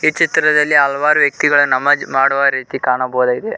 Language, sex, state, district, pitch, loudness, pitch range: Kannada, male, Karnataka, Koppal, 140 Hz, -14 LUFS, 130-150 Hz